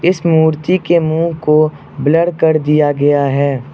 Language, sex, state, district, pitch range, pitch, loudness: Hindi, male, Arunachal Pradesh, Lower Dibang Valley, 145-165 Hz, 155 Hz, -13 LUFS